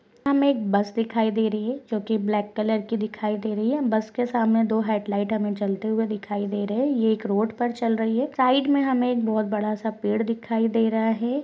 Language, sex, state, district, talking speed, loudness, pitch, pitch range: Hindi, female, Chhattisgarh, Rajnandgaon, 240 wpm, -24 LUFS, 225 Hz, 215-235 Hz